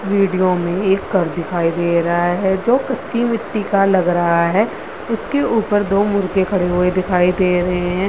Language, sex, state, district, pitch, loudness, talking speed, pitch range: Hindi, female, Bihar, Madhepura, 190 Hz, -17 LUFS, 195 wpm, 180-205 Hz